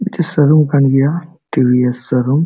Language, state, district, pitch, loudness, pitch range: Santali, Jharkhand, Sahebganj, 145 Hz, -13 LUFS, 130-160 Hz